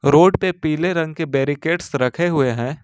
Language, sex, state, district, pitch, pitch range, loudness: Hindi, male, Jharkhand, Ranchi, 155 Hz, 140-170 Hz, -19 LUFS